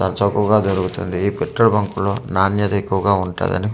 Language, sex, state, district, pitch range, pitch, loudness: Telugu, male, Andhra Pradesh, Manyam, 95-105 Hz, 100 Hz, -18 LUFS